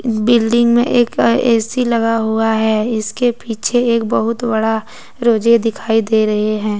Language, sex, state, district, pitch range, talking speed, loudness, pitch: Hindi, female, Jharkhand, Deoghar, 220-235 Hz, 150 wpm, -15 LUFS, 230 Hz